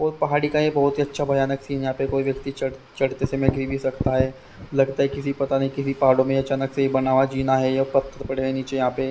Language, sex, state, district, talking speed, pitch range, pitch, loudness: Hindi, male, Haryana, Rohtak, 265 wpm, 130-140 Hz, 135 Hz, -23 LUFS